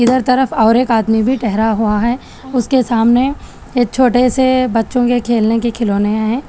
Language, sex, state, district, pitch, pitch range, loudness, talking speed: Hindi, female, Telangana, Hyderabad, 240 Hz, 225-255 Hz, -14 LUFS, 185 wpm